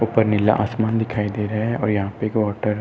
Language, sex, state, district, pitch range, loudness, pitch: Hindi, male, Uttar Pradesh, Muzaffarnagar, 105-110 Hz, -21 LUFS, 110 Hz